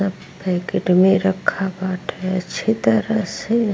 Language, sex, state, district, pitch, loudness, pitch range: Bhojpuri, female, Uttar Pradesh, Ghazipur, 190 Hz, -20 LUFS, 185-215 Hz